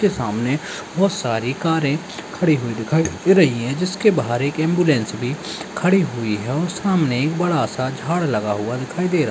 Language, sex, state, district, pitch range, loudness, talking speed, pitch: Hindi, male, Uttar Pradesh, Ghazipur, 125-175 Hz, -20 LUFS, 200 wpm, 155 Hz